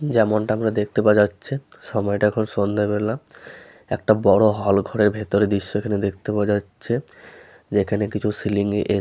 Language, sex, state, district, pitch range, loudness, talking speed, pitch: Bengali, male, West Bengal, Malda, 105-110 Hz, -21 LUFS, 160 wpm, 105 Hz